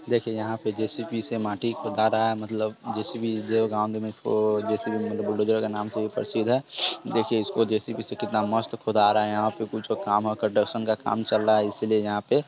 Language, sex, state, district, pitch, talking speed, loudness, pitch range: Hindi, male, Bihar, Sitamarhi, 110 Hz, 230 wpm, -25 LUFS, 110-115 Hz